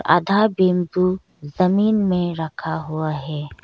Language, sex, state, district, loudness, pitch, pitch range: Hindi, female, Arunachal Pradesh, Lower Dibang Valley, -20 LUFS, 175 Hz, 155-185 Hz